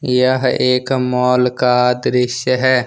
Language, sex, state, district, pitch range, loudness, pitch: Hindi, male, Jharkhand, Ranchi, 125-130 Hz, -15 LUFS, 125 Hz